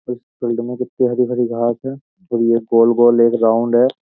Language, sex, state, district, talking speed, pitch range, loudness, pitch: Hindi, male, Uttar Pradesh, Jyotiba Phule Nagar, 195 wpm, 115-125 Hz, -16 LUFS, 120 Hz